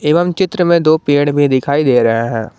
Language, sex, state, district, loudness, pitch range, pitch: Hindi, male, Jharkhand, Garhwa, -13 LUFS, 125-170 Hz, 145 Hz